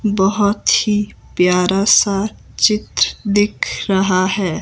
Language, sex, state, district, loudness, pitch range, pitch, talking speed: Hindi, male, Himachal Pradesh, Shimla, -16 LUFS, 190-210 Hz, 200 Hz, 105 wpm